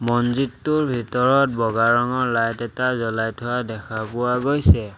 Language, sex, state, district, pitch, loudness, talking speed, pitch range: Assamese, male, Assam, Sonitpur, 120 Hz, -21 LUFS, 130 wpm, 115-125 Hz